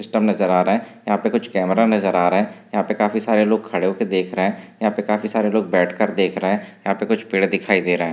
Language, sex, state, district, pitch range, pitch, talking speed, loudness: Hindi, male, Maharashtra, Solapur, 95-110 Hz, 105 Hz, 305 wpm, -19 LUFS